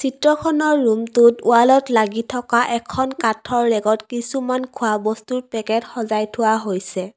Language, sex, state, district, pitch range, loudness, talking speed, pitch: Assamese, female, Assam, Kamrup Metropolitan, 220-255 Hz, -18 LUFS, 125 wpm, 235 Hz